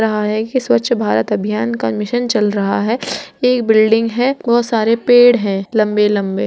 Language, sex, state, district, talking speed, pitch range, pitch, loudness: Hindi, female, Bihar, Gaya, 215 wpm, 205-240 Hz, 220 Hz, -15 LUFS